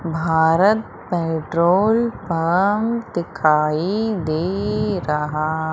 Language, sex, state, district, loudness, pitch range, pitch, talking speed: Hindi, female, Madhya Pradesh, Umaria, -19 LUFS, 160-205 Hz, 170 Hz, 65 wpm